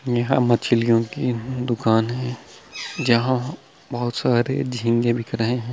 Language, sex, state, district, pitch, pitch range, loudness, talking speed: Hindi, male, Chhattisgarh, Bilaspur, 120 Hz, 115-125 Hz, -21 LUFS, 125 wpm